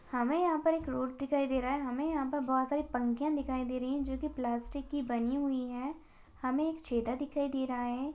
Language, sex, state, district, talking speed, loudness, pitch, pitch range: Hindi, female, West Bengal, Dakshin Dinajpur, 235 wpm, -34 LUFS, 270 Hz, 255-290 Hz